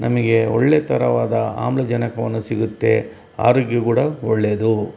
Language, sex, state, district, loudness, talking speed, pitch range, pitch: Kannada, male, Karnataka, Bellary, -18 LUFS, 95 wpm, 110-120 Hz, 115 Hz